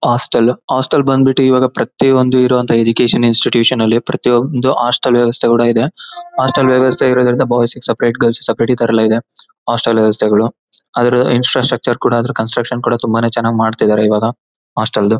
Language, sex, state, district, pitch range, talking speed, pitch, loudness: Kannada, male, Karnataka, Bellary, 115-130 Hz, 160 wpm, 120 Hz, -13 LUFS